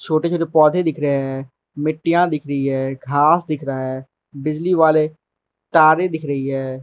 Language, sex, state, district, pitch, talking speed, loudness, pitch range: Hindi, male, Arunachal Pradesh, Lower Dibang Valley, 150 Hz, 175 wpm, -18 LUFS, 135-160 Hz